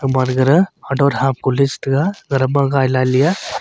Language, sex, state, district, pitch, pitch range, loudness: Wancho, male, Arunachal Pradesh, Longding, 135 Hz, 130-140 Hz, -16 LUFS